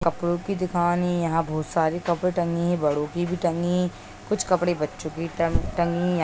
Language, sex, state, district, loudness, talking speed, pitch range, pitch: Hindi, female, Bihar, Saran, -25 LUFS, 220 wpm, 165-175 Hz, 175 Hz